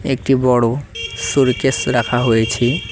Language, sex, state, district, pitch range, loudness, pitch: Bengali, male, West Bengal, Cooch Behar, 115-130 Hz, -16 LUFS, 120 Hz